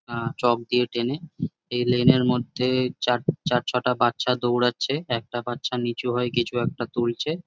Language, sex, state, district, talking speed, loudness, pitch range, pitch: Bengali, male, West Bengal, Jhargram, 160 wpm, -24 LUFS, 120-125 Hz, 125 Hz